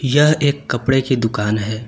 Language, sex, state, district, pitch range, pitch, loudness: Hindi, male, Uttar Pradesh, Lucknow, 110-145 Hz, 130 Hz, -17 LUFS